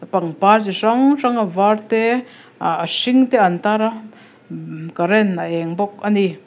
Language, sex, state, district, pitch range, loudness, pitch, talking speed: Mizo, female, Mizoram, Aizawl, 190-225 Hz, -17 LUFS, 210 Hz, 175 wpm